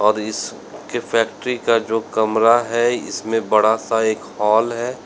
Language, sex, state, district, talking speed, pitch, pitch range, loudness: Hindi, male, Uttar Pradesh, Lalitpur, 165 wpm, 115 Hz, 110-115 Hz, -19 LUFS